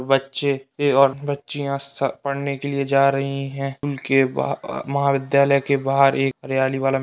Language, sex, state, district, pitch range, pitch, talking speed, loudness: Hindi, male, Bihar, Darbhanga, 135-140 Hz, 140 Hz, 180 wpm, -21 LUFS